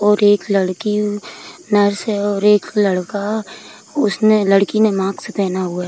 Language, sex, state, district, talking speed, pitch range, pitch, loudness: Hindi, female, Bihar, Kishanganj, 155 wpm, 195-210 Hz, 205 Hz, -17 LUFS